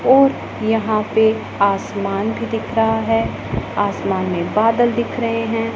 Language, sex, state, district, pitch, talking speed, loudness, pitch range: Hindi, female, Punjab, Pathankot, 225 Hz, 145 wpm, -18 LUFS, 205-230 Hz